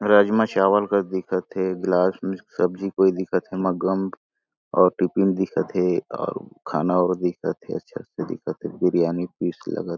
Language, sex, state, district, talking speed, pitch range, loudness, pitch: Chhattisgarhi, male, Chhattisgarh, Jashpur, 175 wpm, 90-95 Hz, -23 LUFS, 95 Hz